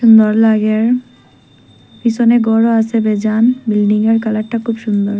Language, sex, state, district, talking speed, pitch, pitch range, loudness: Bengali, female, Assam, Hailakandi, 140 wpm, 220 Hz, 210-230 Hz, -13 LUFS